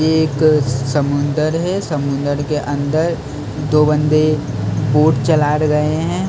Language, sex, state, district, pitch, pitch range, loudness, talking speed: Hindi, male, Maharashtra, Mumbai Suburban, 150 Hz, 145-155 Hz, -16 LUFS, 135 wpm